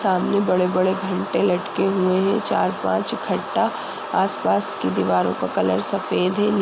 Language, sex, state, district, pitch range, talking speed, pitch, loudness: Hindi, male, Uttar Pradesh, Budaun, 180-195 Hz, 180 wpm, 185 Hz, -21 LUFS